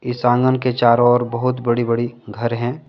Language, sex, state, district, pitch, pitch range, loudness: Hindi, male, Jharkhand, Deoghar, 120 Hz, 120-125 Hz, -18 LUFS